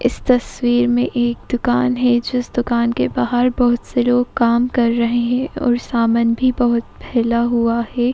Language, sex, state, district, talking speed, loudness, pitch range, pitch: Hindi, female, Uttar Pradesh, Etah, 175 wpm, -17 LUFS, 235-245 Hz, 240 Hz